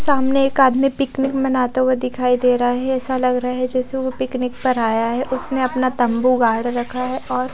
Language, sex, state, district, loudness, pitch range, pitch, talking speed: Hindi, female, Odisha, Khordha, -18 LUFS, 250-265 Hz, 255 Hz, 215 wpm